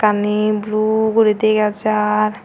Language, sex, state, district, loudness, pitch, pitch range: Chakma, female, Tripura, Unakoti, -16 LUFS, 215 Hz, 210-215 Hz